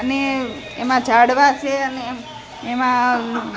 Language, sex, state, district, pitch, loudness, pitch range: Gujarati, female, Gujarat, Gandhinagar, 255 Hz, -18 LUFS, 245-270 Hz